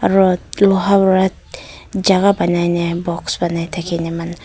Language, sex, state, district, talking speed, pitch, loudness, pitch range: Nagamese, female, Nagaland, Kohima, 135 wpm, 175 Hz, -16 LUFS, 170-195 Hz